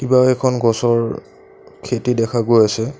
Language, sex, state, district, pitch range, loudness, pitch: Assamese, male, Assam, Sonitpur, 115-130 Hz, -17 LUFS, 120 Hz